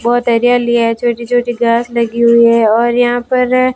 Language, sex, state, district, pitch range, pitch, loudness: Hindi, female, Rajasthan, Bikaner, 235-245 Hz, 240 Hz, -12 LUFS